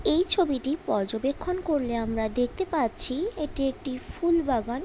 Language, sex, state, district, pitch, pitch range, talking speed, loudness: Bengali, female, West Bengal, Paschim Medinipur, 275 Hz, 245-335 Hz, 135 wpm, -26 LUFS